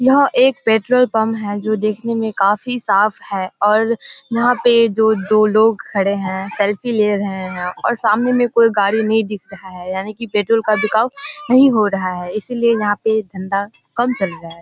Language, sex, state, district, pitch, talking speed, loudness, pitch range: Hindi, female, Bihar, Kishanganj, 215 Hz, 195 wpm, -16 LUFS, 200-235 Hz